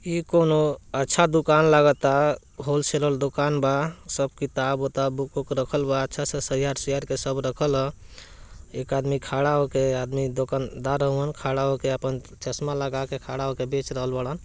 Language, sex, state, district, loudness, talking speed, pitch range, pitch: Bhojpuri, male, Bihar, Gopalganj, -24 LUFS, 165 wpm, 135-145 Hz, 140 Hz